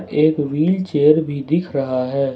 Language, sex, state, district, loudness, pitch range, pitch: Hindi, male, Jharkhand, Ranchi, -18 LUFS, 140-155 Hz, 150 Hz